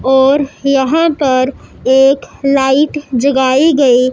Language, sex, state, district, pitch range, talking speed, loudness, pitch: Hindi, male, Punjab, Pathankot, 265-280 Hz, 100 wpm, -12 LUFS, 270 Hz